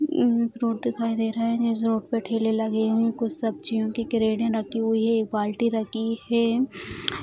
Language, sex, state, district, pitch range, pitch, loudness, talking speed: Hindi, female, Bihar, Jamui, 220-230 Hz, 225 Hz, -25 LUFS, 190 wpm